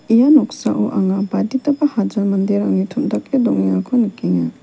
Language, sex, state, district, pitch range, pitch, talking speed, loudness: Garo, female, Meghalaya, West Garo Hills, 190-260 Hz, 205 Hz, 115 wpm, -17 LUFS